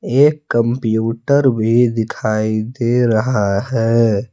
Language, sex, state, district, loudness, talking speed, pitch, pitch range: Hindi, male, Jharkhand, Palamu, -16 LUFS, 95 wpm, 115 Hz, 110-125 Hz